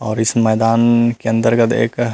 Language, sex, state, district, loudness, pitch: Chhattisgarhi, male, Chhattisgarh, Rajnandgaon, -15 LUFS, 115 Hz